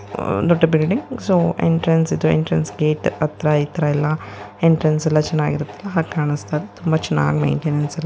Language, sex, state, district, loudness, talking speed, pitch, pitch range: Kannada, female, Karnataka, Mysore, -19 LUFS, 110 wpm, 155 Hz, 150-165 Hz